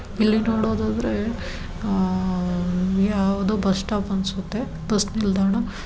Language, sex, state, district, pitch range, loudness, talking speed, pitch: Kannada, female, Karnataka, Dharwad, 185-210 Hz, -23 LUFS, 90 wpm, 195 Hz